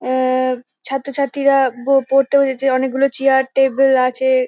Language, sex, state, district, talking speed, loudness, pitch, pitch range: Bengali, female, West Bengal, North 24 Parganas, 135 wpm, -16 LUFS, 265 Hz, 255-275 Hz